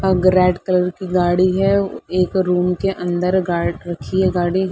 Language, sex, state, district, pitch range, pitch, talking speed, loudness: Hindi, female, Uttar Pradesh, Gorakhpur, 180-190 Hz, 185 Hz, 180 wpm, -18 LUFS